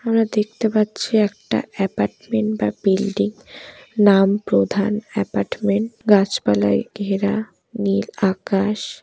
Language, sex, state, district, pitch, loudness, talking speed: Bengali, female, West Bengal, Paschim Medinipur, 200 Hz, -20 LUFS, 95 wpm